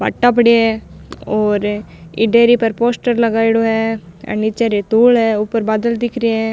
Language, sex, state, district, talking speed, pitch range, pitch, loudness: Rajasthani, female, Rajasthan, Nagaur, 165 wpm, 215-235 Hz, 225 Hz, -15 LUFS